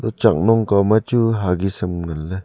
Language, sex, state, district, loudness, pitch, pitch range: Wancho, male, Arunachal Pradesh, Longding, -18 LUFS, 100 Hz, 90-115 Hz